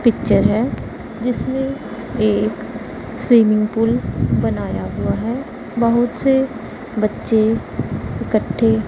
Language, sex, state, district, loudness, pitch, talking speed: Hindi, female, Punjab, Pathankot, -19 LUFS, 225 Hz, 90 wpm